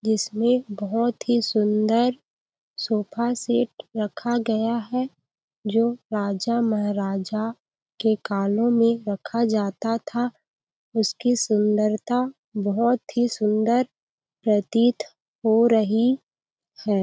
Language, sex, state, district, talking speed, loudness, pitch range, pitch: Hindi, female, Chhattisgarh, Balrampur, 90 wpm, -23 LUFS, 210-240 Hz, 225 Hz